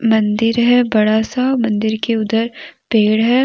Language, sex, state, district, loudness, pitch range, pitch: Hindi, female, Jharkhand, Deoghar, -15 LUFS, 220-240 Hz, 225 Hz